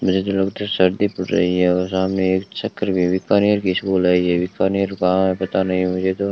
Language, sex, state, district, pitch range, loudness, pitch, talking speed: Hindi, male, Rajasthan, Bikaner, 90-95 Hz, -19 LUFS, 95 Hz, 210 wpm